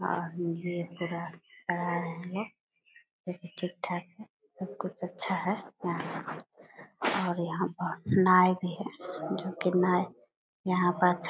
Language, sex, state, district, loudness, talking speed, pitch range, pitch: Hindi, female, Bihar, Purnia, -31 LUFS, 120 wpm, 175-185 Hz, 180 Hz